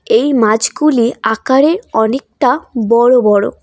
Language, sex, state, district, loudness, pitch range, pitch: Bengali, female, West Bengal, Cooch Behar, -12 LUFS, 225-285 Hz, 245 Hz